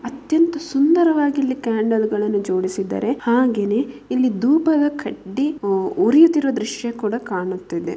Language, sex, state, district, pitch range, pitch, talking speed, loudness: Kannada, female, Karnataka, Mysore, 210-290 Hz, 245 Hz, 100 wpm, -19 LUFS